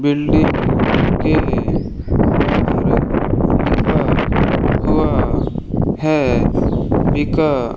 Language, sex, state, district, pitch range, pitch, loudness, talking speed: Hindi, male, Rajasthan, Bikaner, 130-155 Hz, 145 Hz, -16 LUFS, 55 wpm